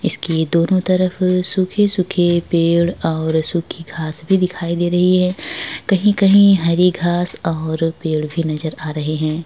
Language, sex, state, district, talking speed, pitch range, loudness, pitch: Hindi, female, Uttar Pradesh, Jalaun, 145 wpm, 160-185 Hz, -16 LUFS, 175 Hz